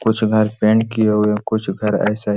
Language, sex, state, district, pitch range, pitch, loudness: Hindi, male, Jharkhand, Sahebganj, 105-110 Hz, 105 Hz, -17 LUFS